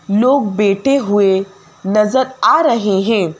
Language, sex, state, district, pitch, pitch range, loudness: Hindi, female, Madhya Pradesh, Bhopal, 205 Hz, 195-235 Hz, -14 LUFS